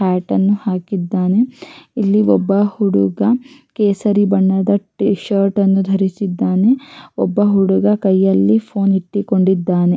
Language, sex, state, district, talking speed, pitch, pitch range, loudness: Kannada, female, Karnataka, Raichur, 90 wpm, 200 Hz, 190-210 Hz, -15 LUFS